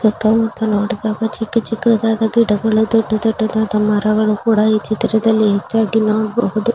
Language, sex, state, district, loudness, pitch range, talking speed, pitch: Kannada, female, Karnataka, Raichur, -16 LUFS, 215-225 Hz, 125 wpm, 220 Hz